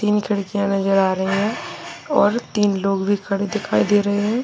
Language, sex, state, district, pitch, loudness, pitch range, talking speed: Hindi, male, Uttar Pradesh, Lalitpur, 205 Hz, -20 LUFS, 195-210 Hz, 205 wpm